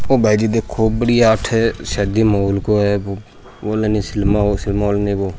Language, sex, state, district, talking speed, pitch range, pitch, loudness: Rajasthani, male, Rajasthan, Churu, 65 wpm, 100-110 Hz, 105 Hz, -17 LUFS